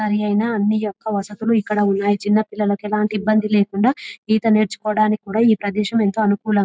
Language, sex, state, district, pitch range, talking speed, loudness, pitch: Telugu, female, Telangana, Nalgonda, 205-215 Hz, 165 wpm, -19 LUFS, 210 Hz